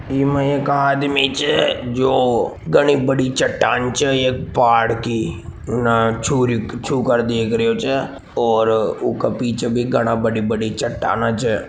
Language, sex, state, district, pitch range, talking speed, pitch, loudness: Marwari, male, Rajasthan, Nagaur, 115-135 Hz, 130 wpm, 120 Hz, -18 LUFS